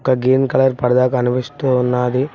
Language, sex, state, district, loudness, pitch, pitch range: Telugu, male, Telangana, Mahabubabad, -16 LUFS, 130 Hz, 125-130 Hz